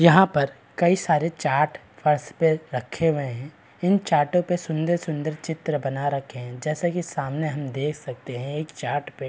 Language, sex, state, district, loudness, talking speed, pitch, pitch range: Hindi, male, Bihar, Araria, -24 LUFS, 175 wpm, 150 Hz, 140-165 Hz